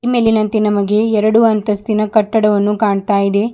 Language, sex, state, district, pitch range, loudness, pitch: Kannada, female, Karnataka, Bidar, 205-220 Hz, -14 LUFS, 215 Hz